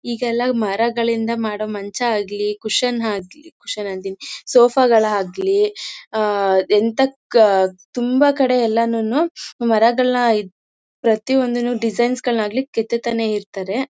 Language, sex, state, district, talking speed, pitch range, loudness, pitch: Kannada, female, Karnataka, Mysore, 100 wpm, 210-250 Hz, -18 LUFS, 230 Hz